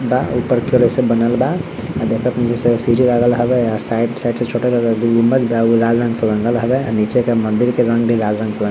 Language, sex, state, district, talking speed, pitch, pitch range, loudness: Bhojpuri, male, Bihar, Saran, 235 wpm, 120 Hz, 115-125 Hz, -16 LUFS